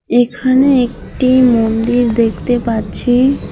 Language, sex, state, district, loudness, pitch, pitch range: Bengali, female, West Bengal, Alipurduar, -13 LUFS, 245 Hz, 230-255 Hz